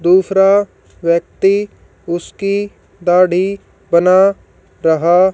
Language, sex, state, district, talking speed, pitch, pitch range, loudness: Hindi, female, Haryana, Charkhi Dadri, 65 wpm, 185 Hz, 175-195 Hz, -14 LUFS